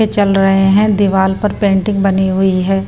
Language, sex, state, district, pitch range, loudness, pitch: Hindi, female, Bihar, Patna, 190-205 Hz, -12 LUFS, 195 Hz